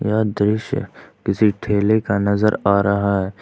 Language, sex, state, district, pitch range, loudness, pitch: Hindi, male, Jharkhand, Ranchi, 100-110 Hz, -19 LUFS, 105 Hz